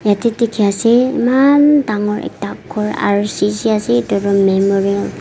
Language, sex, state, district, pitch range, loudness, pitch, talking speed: Nagamese, female, Nagaland, Kohima, 200-235 Hz, -14 LUFS, 210 Hz, 140 wpm